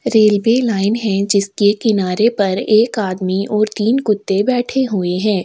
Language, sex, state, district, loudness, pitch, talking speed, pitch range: Hindi, female, Chhattisgarh, Sukma, -15 LUFS, 210 Hz, 155 wpm, 195-225 Hz